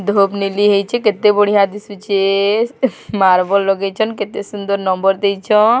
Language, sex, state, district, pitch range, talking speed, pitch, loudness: Odia, female, Odisha, Sambalpur, 195-210 Hz, 135 wpm, 200 Hz, -15 LUFS